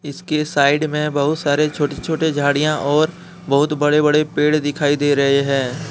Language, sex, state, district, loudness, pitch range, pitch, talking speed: Hindi, male, Jharkhand, Deoghar, -17 LUFS, 145-155 Hz, 150 Hz, 170 wpm